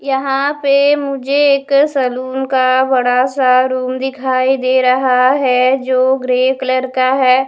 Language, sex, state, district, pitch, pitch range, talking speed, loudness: Hindi, female, Punjab, Fazilka, 260 Hz, 255-270 Hz, 150 wpm, -13 LUFS